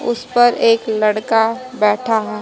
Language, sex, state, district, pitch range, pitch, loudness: Hindi, female, Haryana, Jhajjar, 215-240 Hz, 225 Hz, -16 LUFS